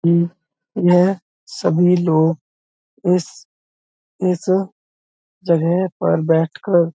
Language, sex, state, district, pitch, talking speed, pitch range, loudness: Hindi, male, Uttar Pradesh, Budaun, 170 Hz, 70 wpm, 160-180 Hz, -18 LUFS